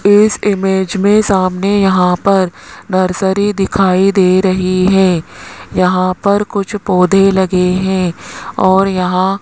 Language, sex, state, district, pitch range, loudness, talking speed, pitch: Hindi, male, Rajasthan, Jaipur, 185-200 Hz, -12 LUFS, 135 wpm, 190 Hz